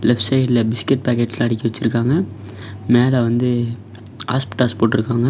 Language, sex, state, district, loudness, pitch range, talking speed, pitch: Tamil, male, Tamil Nadu, Namakkal, -18 LUFS, 115-125 Hz, 115 wpm, 120 Hz